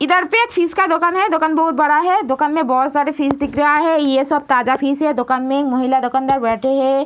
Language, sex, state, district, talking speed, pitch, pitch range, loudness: Hindi, female, Bihar, Gopalganj, 265 wpm, 290 Hz, 265-320 Hz, -16 LUFS